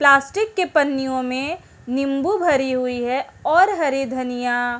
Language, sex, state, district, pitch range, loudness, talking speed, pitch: Hindi, female, Uttarakhand, Uttarkashi, 255-325 Hz, -20 LUFS, 150 wpm, 270 Hz